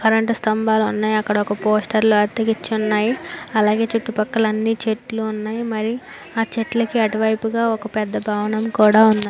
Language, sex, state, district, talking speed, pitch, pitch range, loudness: Telugu, female, Andhra Pradesh, Anantapur, 155 wpm, 220 Hz, 215-225 Hz, -19 LUFS